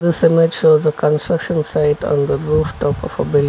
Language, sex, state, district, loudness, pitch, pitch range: English, male, Karnataka, Bangalore, -16 LUFS, 155 Hz, 150-165 Hz